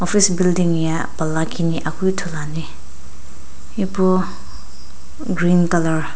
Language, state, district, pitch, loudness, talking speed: Sumi, Nagaland, Dimapur, 160 Hz, -19 LUFS, 105 wpm